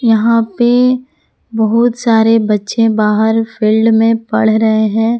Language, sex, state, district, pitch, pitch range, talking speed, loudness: Hindi, female, Jharkhand, Palamu, 225 Hz, 220-230 Hz, 125 wpm, -12 LUFS